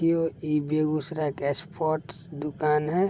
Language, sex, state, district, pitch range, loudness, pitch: Maithili, male, Bihar, Begusarai, 150-165 Hz, -27 LUFS, 155 Hz